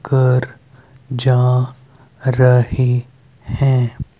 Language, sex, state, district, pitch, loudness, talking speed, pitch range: Hindi, male, Haryana, Rohtak, 130 Hz, -16 LUFS, 55 wpm, 125-130 Hz